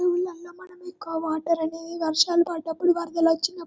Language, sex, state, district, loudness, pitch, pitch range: Telugu, male, Telangana, Karimnagar, -24 LUFS, 340 Hz, 325-355 Hz